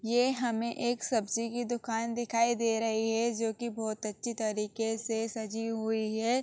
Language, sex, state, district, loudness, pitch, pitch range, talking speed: Hindi, female, Uttar Pradesh, Gorakhpur, -32 LUFS, 225 Hz, 220-235 Hz, 170 wpm